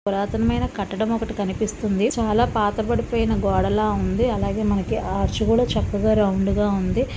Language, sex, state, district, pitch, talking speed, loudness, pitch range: Telugu, female, Andhra Pradesh, Visakhapatnam, 210 Hz, 125 wpm, -22 LUFS, 195-220 Hz